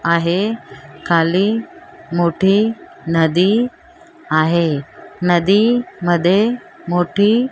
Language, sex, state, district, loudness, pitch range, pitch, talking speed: Marathi, female, Maharashtra, Mumbai Suburban, -16 LUFS, 170-230 Hz, 190 Hz, 65 wpm